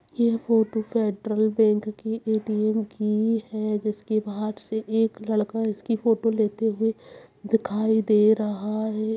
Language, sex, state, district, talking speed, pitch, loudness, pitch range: Hindi, female, Chhattisgarh, Kabirdham, 140 wpm, 220 Hz, -24 LUFS, 215-225 Hz